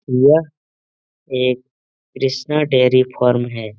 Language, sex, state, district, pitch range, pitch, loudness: Hindi, male, Uttar Pradesh, Etah, 125-140 Hz, 130 Hz, -17 LUFS